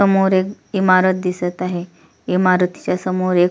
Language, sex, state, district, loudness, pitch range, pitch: Marathi, female, Maharashtra, Solapur, -18 LUFS, 180-185 Hz, 185 Hz